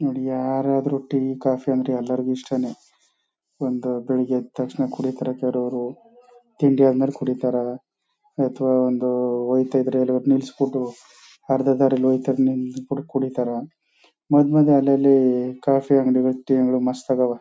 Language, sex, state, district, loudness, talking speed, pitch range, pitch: Kannada, male, Karnataka, Chamarajanagar, -21 LUFS, 115 wpm, 125-135 Hz, 130 Hz